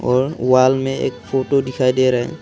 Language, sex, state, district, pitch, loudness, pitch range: Hindi, male, Arunachal Pradesh, Longding, 130 Hz, -17 LUFS, 130-135 Hz